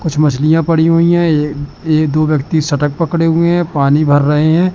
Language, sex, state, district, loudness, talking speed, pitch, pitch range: Hindi, male, Madhya Pradesh, Katni, -12 LUFS, 215 wpm, 155 Hz, 150-165 Hz